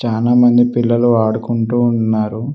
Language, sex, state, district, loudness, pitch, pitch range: Telugu, male, Telangana, Mahabubabad, -14 LUFS, 120 Hz, 110-120 Hz